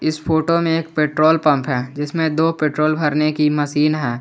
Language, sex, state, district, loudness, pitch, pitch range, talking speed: Hindi, male, Jharkhand, Garhwa, -18 LUFS, 155 Hz, 150-160 Hz, 200 wpm